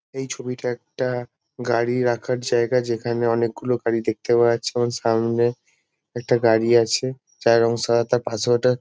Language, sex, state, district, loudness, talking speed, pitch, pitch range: Bengali, male, West Bengal, Jalpaiguri, -21 LUFS, 155 wpm, 120 Hz, 115-125 Hz